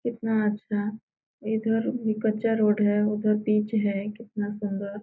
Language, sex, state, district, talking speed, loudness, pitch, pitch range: Hindi, female, Bihar, Gopalganj, 145 wpm, -26 LUFS, 215 Hz, 210-220 Hz